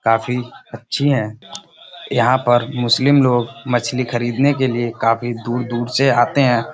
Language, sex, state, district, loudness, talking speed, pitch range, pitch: Hindi, male, Uttar Pradesh, Budaun, -17 LUFS, 140 wpm, 120-135 Hz, 120 Hz